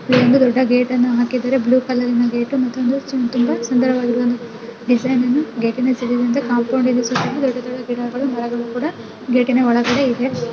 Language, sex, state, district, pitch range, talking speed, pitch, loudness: Kannada, female, Karnataka, Mysore, 240-255 Hz, 125 wpm, 250 Hz, -17 LUFS